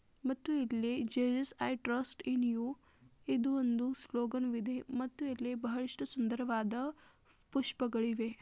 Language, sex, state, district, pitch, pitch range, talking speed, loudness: Kannada, female, Karnataka, Belgaum, 250 Hz, 240-265 Hz, 115 wpm, -36 LUFS